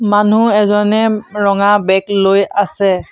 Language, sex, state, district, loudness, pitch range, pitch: Assamese, male, Assam, Sonitpur, -12 LUFS, 200-210 Hz, 205 Hz